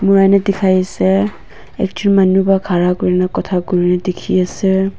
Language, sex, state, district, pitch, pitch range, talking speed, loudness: Nagamese, female, Nagaland, Dimapur, 185 Hz, 180-195 Hz, 110 wpm, -14 LUFS